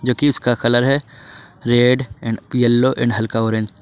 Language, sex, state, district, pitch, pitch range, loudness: Hindi, male, Jharkhand, Ranchi, 120 Hz, 115-130 Hz, -17 LUFS